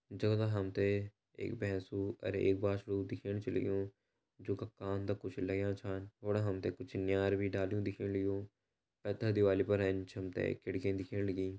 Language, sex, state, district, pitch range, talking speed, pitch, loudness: Garhwali, male, Uttarakhand, Uttarkashi, 95-100 Hz, 170 wpm, 100 Hz, -37 LUFS